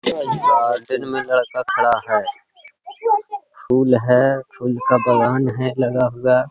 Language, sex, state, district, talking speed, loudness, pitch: Hindi, male, Bihar, Gaya, 120 wpm, -18 LUFS, 130 Hz